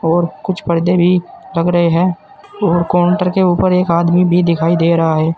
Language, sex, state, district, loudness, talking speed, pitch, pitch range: Hindi, male, Uttar Pradesh, Saharanpur, -14 LUFS, 200 wpm, 175 Hz, 170-180 Hz